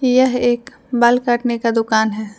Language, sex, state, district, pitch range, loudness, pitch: Hindi, female, Jharkhand, Deoghar, 225-250 Hz, -17 LUFS, 240 Hz